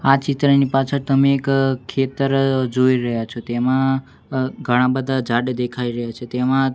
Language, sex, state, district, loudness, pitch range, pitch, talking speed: Gujarati, male, Gujarat, Gandhinagar, -19 LUFS, 125-135 Hz, 130 Hz, 160 wpm